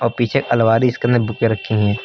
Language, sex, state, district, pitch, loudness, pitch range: Hindi, male, Uttar Pradesh, Lucknow, 115 Hz, -17 LUFS, 110-120 Hz